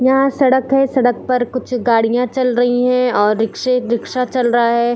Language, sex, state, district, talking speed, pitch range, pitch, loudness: Hindi, female, Chhattisgarh, Bilaspur, 195 wpm, 240-255 Hz, 250 Hz, -15 LUFS